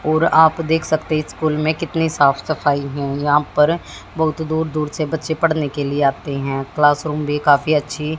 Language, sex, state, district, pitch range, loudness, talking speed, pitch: Hindi, female, Haryana, Jhajjar, 145-160 Hz, -18 LUFS, 195 wpm, 155 Hz